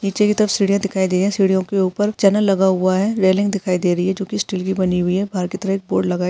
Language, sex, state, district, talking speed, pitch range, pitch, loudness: Hindi, female, Maharashtra, Nagpur, 305 wpm, 185-200 Hz, 195 Hz, -18 LUFS